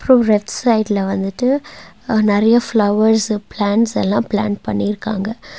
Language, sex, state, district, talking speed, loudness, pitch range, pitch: Tamil, female, Tamil Nadu, Nilgiris, 120 wpm, -16 LUFS, 205-230 Hz, 215 Hz